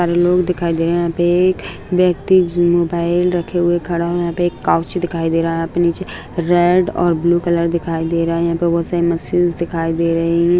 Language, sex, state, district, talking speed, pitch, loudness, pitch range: Hindi, male, Bihar, Begusarai, 250 wpm, 170 Hz, -16 LUFS, 170-175 Hz